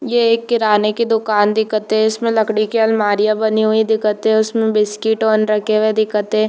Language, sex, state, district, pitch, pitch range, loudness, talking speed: Hindi, female, Chhattisgarh, Bilaspur, 220 Hz, 215-220 Hz, -15 LUFS, 175 wpm